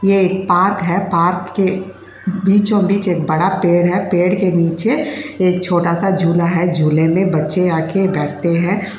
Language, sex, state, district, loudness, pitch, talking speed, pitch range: Hindi, female, Uttar Pradesh, Jyotiba Phule Nagar, -15 LUFS, 180 Hz, 165 wpm, 170-195 Hz